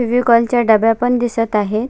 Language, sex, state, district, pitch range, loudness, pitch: Marathi, female, Maharashtra, Sindhudurg, 225-245 Hz, -14 LUFS, 235 Hz